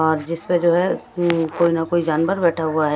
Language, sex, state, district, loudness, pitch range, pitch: Hindi, male, Bihar, West Champaran, -19 LUFS, 160-175 Hz, 165 Hz